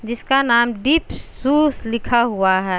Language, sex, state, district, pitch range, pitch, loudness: Hindi, female, Uttar Pradesh, Jalaun, 225-270 Hz, 235 Hz, -17 LUFS